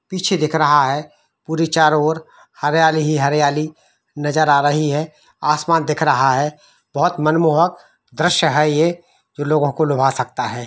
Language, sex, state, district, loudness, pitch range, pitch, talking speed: Hindi, male, Jharkhand, Sahebganj, -17 LUFS, 145-160 Hz, 150 Hz, 175 wpm